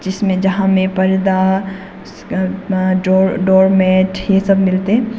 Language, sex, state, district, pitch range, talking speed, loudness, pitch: Hindi, female, Arunachal Pradesh, Papum Pare, 190-195 Hz, 125 wpm, -14 LUFS, 190 Hz